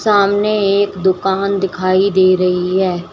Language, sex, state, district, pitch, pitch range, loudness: Hindi, female, Uttar Pradesh, Shamli, 190 Hz, 185-200 Hz, -14 LUFS